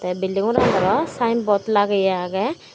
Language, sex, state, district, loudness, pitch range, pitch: Chakma, female, Tripura, Dhalai, -20 LUFS, 190-220 Hz, 200 Hz